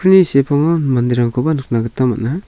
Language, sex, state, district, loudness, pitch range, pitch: Garo, male, Meghalaya, South Garo Hills, -15 LUFS, 120-160 Hz, 135 Hz